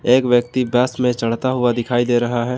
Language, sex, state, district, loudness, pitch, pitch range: Hindi, male, Jharkhand, Palamu, -18 LUFS, 120 Hz, 120-125 Hz